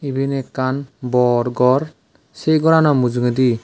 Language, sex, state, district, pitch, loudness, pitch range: Chakma, male, Tripura, West Tripura, 130 Hz, -17 LUFS, 125-140 Hz